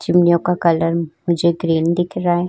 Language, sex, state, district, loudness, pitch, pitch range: Hindi, female, Maharashtra, Chandrapur, -17 LUFS, 170 Hz, 170-175 Hz